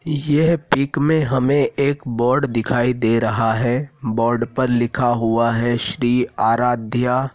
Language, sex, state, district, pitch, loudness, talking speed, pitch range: Hindi, male, Madhya Pradesh, Dhar, 125 Hz, -18 LUFS, 140 wpm, 115-140 Hz